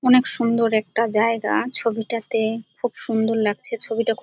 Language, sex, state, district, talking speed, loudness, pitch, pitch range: Bengali, female, West Bengal, Dakshin Dinajpur, 140 wpm, -22 LUFS, 230 Hz, 220-235 Hz